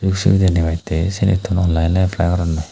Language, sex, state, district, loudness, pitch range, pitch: Chakma, male, Tripura, Unakoti, -17 LUFS, 80-95 Hz, 90 Hz